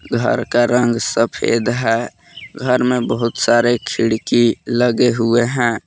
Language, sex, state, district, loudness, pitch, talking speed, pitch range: Hindi, male, Jharkhand, Palamu, -16 LUFS, 120 Hz, 135 wpm, 115-120 Hz